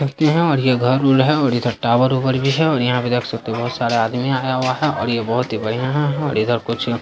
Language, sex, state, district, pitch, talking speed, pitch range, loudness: Hindi, male, Bihar, Saharsa, 125 Hz, 300 wpm, 120-135 Hz, -18 LUFS